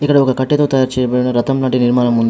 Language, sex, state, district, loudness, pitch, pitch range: Telugu, male, Telangana, Adilabad, -14 LUFS, 130 Hz, 125-135 Hz